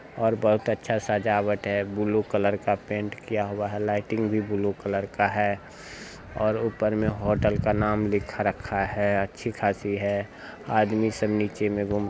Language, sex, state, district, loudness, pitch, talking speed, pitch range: Hindi, male, Bihar, Jahanabad, -26 LUFS, 105 Hz, 180 wpm, 100-110 Hz